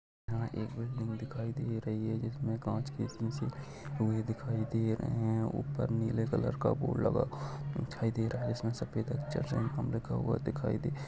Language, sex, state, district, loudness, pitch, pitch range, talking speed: Hindi, male, Maharashtra, Nagpur, -35 LUFS, 115 Hz, 115-135 Hz, 190 wpm